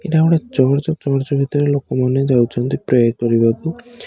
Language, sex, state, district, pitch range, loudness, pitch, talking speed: Odia, male, Odisha, Khordha, 125-160 Hz, -17 LUFS, 140 Hz, 130 wpm